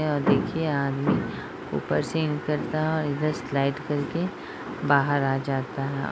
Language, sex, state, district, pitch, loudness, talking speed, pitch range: Hindi, female, Bihar, Sitamarhi, 145 Hz, -26 LUFS, 145 wpm, 140-155 Hz